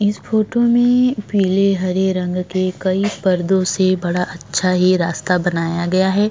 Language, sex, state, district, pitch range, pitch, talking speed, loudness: Hindi, male, Uttar Pradesh, Jyotiba Phule Nagar, 180-200 Hz, 185 Hz, 160 wpm, -17 LUFS